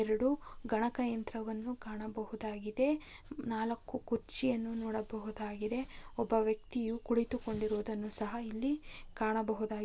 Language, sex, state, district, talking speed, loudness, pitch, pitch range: Kannada, female, Karnataka, Bijapur, 75 wpm, -37 LUFS, 225 Hz, 220-240 Hz